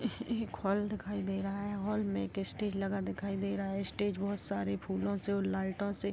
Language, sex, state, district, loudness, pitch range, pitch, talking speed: Hindi, female, Uttar Pradesh, Gorakhpur, -36 LUFS, 195-205 Hz, 200 Hz, 225 wpm